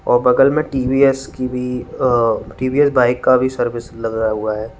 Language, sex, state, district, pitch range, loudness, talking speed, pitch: Hindi, male, Uttar Pradesh, Lalitpur, 115-130 Hz, -17 LUFS, 200 wpm, 125 Hz